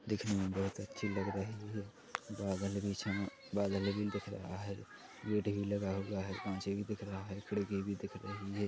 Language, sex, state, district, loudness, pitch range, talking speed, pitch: Hindi, male, Chhattisgarh, Rajnandgaon, -40 LUFS, 100-105 Hz, 205 wpm, 100 Hz